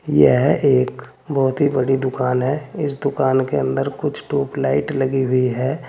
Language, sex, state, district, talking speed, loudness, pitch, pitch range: Hindi, male, Uttar Pradesh, Saharanpur, 165 wpm, -19 LUFS, 130 Hz, 125-135 Hz